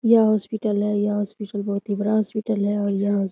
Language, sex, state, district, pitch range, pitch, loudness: Hindi, female, Bihar, Samastipur, 205-215 Hz, 205 Hz, -22 LUFS